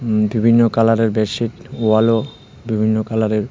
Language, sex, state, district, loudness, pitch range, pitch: Bengali, male, Tripura, West Tripura, -17 LUFS, 110-115 Hz, 115 Hz